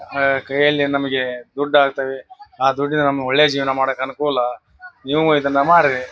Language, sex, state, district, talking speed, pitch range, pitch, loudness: Kannada, male, Karnataka, Bijapur, 145 wpm, 135-145 Hz, 140 Hz, -18 LUFS